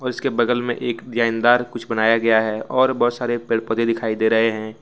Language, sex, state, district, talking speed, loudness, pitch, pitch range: Hindi, male, Jharkhand, Ranchi, 225 wpm, -19 LUFS, 115 Hz, 110-120 Hz